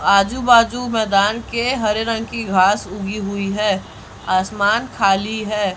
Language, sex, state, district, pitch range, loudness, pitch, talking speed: Hindi, male, Chhattisgarh, Raipur, 200-230 Hz, -18 LUFS, 210 Hz, 145 wpm